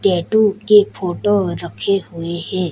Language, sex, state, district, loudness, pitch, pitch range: Hindi, male, Gujarat, Gandhinagar, -17 LUFS, 195 Hz, 175-205 Hz